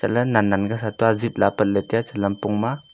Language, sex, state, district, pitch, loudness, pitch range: Wancho, male, Arunachal Pradesh, Longding, 110 Hz, -21 LUFS, 100-115 Hz